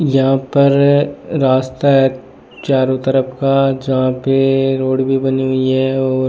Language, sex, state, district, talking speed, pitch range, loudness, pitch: Hindi, male, Rajasthan, Bikaner, 145 wpm, 130-135 Hz, -14 LUFS, 135 Hz